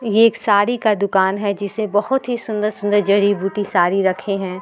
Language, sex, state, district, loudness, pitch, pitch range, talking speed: Hindi, female, Bihar, Vaishali, -18 LUFS, 205 Hz, 200-215 Hz, 180 wpm